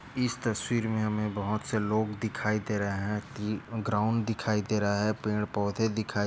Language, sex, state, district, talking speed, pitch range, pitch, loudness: Hindi, male, Maharashtra, Nagpur, 210 wpm, 105-110 Hz, 105 Hz, -30 LUFS